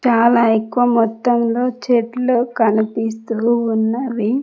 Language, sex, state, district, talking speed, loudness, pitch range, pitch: Telugu, female, Telangana, Mahabubabad, 95 wpm, -17 LUFS, 225-245 Hz, 235 Hz